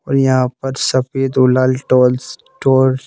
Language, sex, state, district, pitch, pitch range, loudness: Hindi, male, Madhya Pradesh, Bhopal, 130 Hz, 130-135 Hz, -15 LUFS